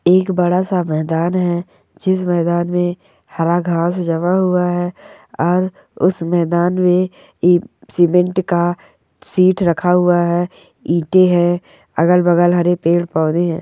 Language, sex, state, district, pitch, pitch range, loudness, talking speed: Hindi, male, Bihar, East Champaran, 175 Hz, 175-180 Hz, -16 LUFS, 130 wpm